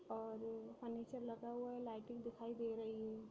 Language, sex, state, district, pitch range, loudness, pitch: Hindi, female, Bihar, Sitamarhi, 225-235 Hz, -48 LUFS, 230 Hz